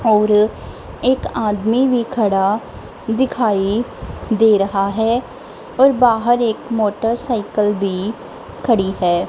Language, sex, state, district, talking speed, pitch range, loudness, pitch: Hindi, female, Punjab, Kapurthala, 105 wpm, 205-240 Hz, -17 LUFS, 220 Hz